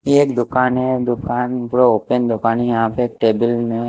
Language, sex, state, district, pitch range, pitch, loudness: Hindi, male, Chandigarh, Chandigarh, 115-125 Hz, 120 Hz, -17 LUFS